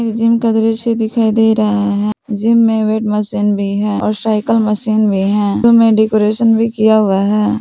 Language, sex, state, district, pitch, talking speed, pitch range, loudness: Hindi, female, Jharkhand, Palamu, 215 Hz, 195 wpm, 210-225 Hz, -13 LUFS